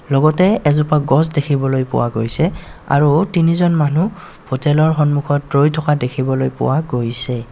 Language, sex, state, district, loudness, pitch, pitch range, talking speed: Assamese, male, Assam, Kamrup Metropolitan, -16 LUFS, 145 Hz, 135-155 Hz, 135 wpm